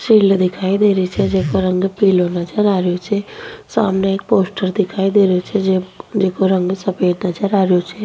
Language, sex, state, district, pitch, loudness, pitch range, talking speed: Rajasthani, female, Rajasthan, Nagaur, 190 Hz, -16 LUFS, 185-205 Hz, 185 wpm